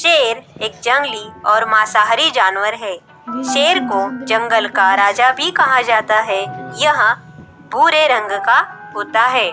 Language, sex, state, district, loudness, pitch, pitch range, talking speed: Hindi, female, Bihar, Katihar, -14 LUFS, 225 Hz, 210-270 Hz, 140 wpm